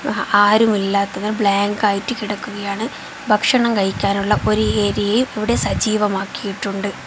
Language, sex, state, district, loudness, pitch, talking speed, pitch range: Malayalam, female, Kerala, Kozhikode, -18 LUFS, 205 Hz, 100 wpm, 200-215 Hz